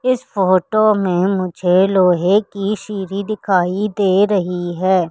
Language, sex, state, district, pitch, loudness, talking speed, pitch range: Hindi, female, Madhya Pradesh, Katni, 195 Hz, -16 LUFS, 130 wpm, 185-205 Hz